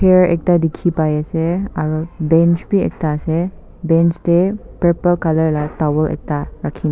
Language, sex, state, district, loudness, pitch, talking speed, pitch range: Nagamese, female, Nagaland, Kohima, -17 LUFS, 165 Hz, 165 wpm, 155-175 Hz